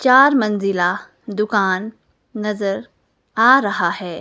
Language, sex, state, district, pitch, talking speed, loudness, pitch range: Hindi, female, Himachal Pradesh, Shimla, 210 Hz, 100 wpm, -17 LUFS, 195-225 Hz